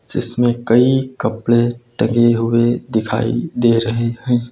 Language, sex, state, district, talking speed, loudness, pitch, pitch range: Hindi, male, Uttar Pradesh, Lucknow, 120 wpm, -16 LUFS, 120 Hz, 115-120 Hz